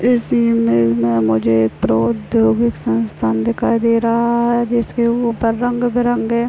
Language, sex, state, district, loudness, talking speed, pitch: Hindi, female, Chhattisgarh, Bilaspur, -16 LUFS, 140 wpm, 230 Hz